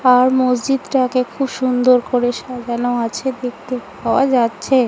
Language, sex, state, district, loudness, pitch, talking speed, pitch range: Bengali, female, West Bengal, Paschim Medinipur, -17 LUFS, 250 Hz, 135 wpm, 245-260 Hz